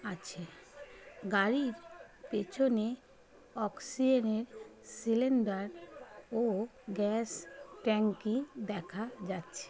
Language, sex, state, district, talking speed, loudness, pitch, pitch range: Bengali, female, West Bengal, Kolkata, 80 wpm, -34 LUFS, 220 Hz, 205-255 Hz